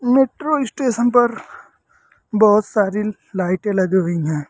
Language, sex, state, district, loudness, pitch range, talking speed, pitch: Hindi, male, Uttar Pradesh, Lucknow, -18 LUFS, 190-245 Hz, 120 wpm, 210 Hz